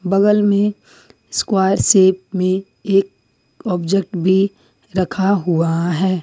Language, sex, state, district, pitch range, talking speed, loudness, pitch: Hindi, female, Jharkhand, Ranchi, 180-195 Hz, 105 wpm, -17 LUFS, 190 Hz